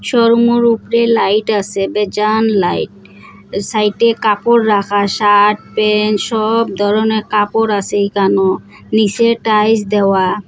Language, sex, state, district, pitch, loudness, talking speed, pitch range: Bengali, female, Assam, Hailakandi, 210 Hz, -13 LUFS, 110 wpm, 205-225 Hz